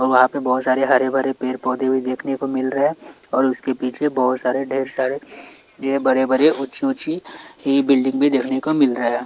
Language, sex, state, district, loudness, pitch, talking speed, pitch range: Hindi, male, Chhattisgarh, Raipur, -19 LUFS, 130 Hz, 205 wpm, 130-140 Hz